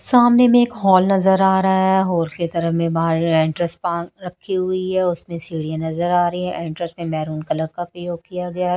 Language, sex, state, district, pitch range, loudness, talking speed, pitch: Hindi, female, Chhattisgarh, Raipur, 165-185 Hz, -19 LUFS, 225 wpm, 175 Hz